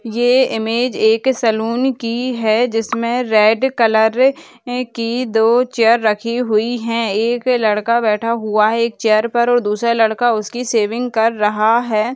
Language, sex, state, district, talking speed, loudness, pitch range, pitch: Hindi, female, Bihar, Saharsa, 155 wpm, -16 LUFS, 220-245 Hz, 230 Hz